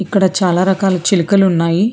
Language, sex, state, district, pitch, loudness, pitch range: Telugu, female, Telangana, Hyderabad, 190 Hz, -13 LUFS, 180-195 Hz